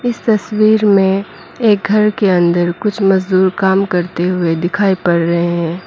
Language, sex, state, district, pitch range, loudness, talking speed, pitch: Hindi, female, Mizoram, Aizawl, 175-210 Hz, -14 LUFS, 165 wpm, 190 Hz